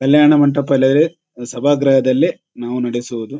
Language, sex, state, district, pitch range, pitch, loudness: Kannada, male, Karnataka, Shimoga, 120-145 Hz, 135 Hz, -15 LUFS